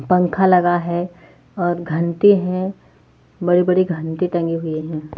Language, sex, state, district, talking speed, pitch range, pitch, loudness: Hindi, female, Haryana, Jhajjar, 125 wpm, 165-180 Hz, 175 Hz, -18 LUFS